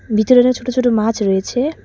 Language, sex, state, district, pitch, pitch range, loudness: Bengali, female, West Bengal, Cooch Behar, 245 Hz, 215-250 Hz, -15 LUFS